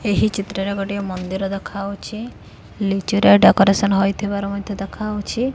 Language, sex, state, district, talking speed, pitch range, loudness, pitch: Odia, female, Odisha, Khordha, 130 wpm, 195-205 Hz, -19 LUFS, 200 Hz